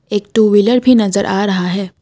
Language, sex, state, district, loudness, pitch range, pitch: Hindi, female, Assam, Kamrup Metropolitan, -13 LUFS, 195-220 Hz, 205 Hz